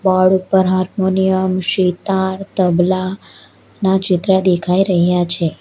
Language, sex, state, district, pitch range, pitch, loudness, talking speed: Gujarati, female, Gujarat, Valsad, 180-190 Hz, 185 Hz, -15 LUFS, 105 wpm